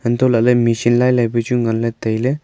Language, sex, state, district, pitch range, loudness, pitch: Wancho, male, Arunachal Pradesh, Longding, 115-125 Hz, -16 LUFS, 120 Hz